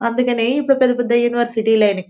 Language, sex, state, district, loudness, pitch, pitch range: Telugu, female, Telangana, Nalgonda, -16 LUFS, 240 Hz, 225-250 Hz